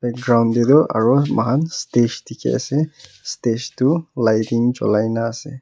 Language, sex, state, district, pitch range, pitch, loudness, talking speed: Nagamese, male, Nagaland, Kohima, 115-140 Hz, 120 Hz, -18 LUFS, 140 wpm